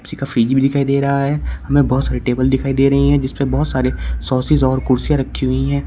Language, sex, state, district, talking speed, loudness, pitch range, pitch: Hindi, male, Uttar Pradesh, Shamli, 245 wpm, -16 LUFS, 130-140 Hz, 135 Hz